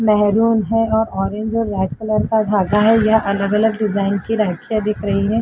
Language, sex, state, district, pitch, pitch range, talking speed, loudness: Hindi, female, Uttar Pradesh, Jalaun, 215 Hz, 200-220 Hz, 200 wpm, -17 LUFS